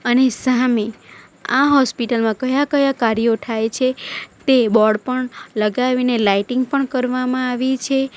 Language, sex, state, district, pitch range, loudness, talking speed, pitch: Gujarati, female, Gujarat, Valsad, 230-260 Hz, -18 LUFS, 130 wpm, 255 Hz